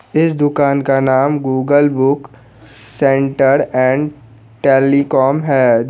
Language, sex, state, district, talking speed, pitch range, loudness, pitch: Hindi, male, Bihar, Purnia, 100 wpm, 130-140 Hz, -14 LUFS, 135 Hz